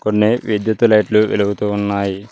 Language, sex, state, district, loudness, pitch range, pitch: Telugu, male, Telangana, Mahabubabad, -16 LUFS, 100-110 Hz, 105 Hz